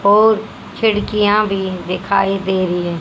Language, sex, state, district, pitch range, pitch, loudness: Hindi, female, Haryana, Rohtak, 185-210 Hz, 195 Hz, -16 LUFS